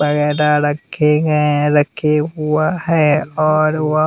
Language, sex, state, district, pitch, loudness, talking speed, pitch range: Hindi, male, Bihar, West Champaran, 150 Hz, -15 LUFS, 130 wpm, 150-155 Hz